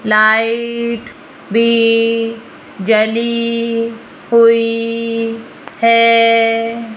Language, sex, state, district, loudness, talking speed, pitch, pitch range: Hindi, female, Rajasthan, Jaipur, -13 LUFS, 45 wpm, 230 Hz, 225-230 Hz